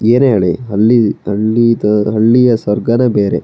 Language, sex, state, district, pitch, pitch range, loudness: Kannada, male, Karnataka, Shimoga, 110 Hz, 105-120 Hz, -12 LUFS